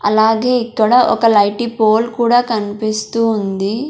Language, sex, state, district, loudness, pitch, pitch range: Telugu, female, Andhra Pradesh, Sri Satya Sai, -14 LUFS, 225 Hz, 215-235 Hz